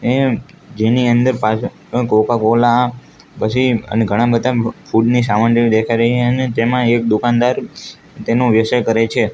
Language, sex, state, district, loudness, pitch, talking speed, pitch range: Gujarati, male, Gujarat, Gandhinagar, -15 LUFS, 120 Hz, 135 wpm, 115-125 Hz